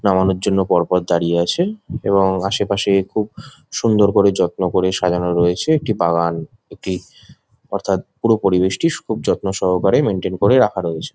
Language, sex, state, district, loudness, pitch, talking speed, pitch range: Bengali, male, West Bengal, Jhargram, -18 LUFS, 95 Hz, 140 wpm, 90-105 Hz